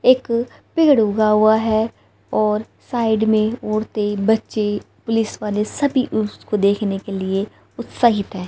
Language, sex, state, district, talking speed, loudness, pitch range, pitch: Hindi, female, Haryana, Rohtak, 135 wpm, -19 LUFS, 210-225 Hz, 215 Hz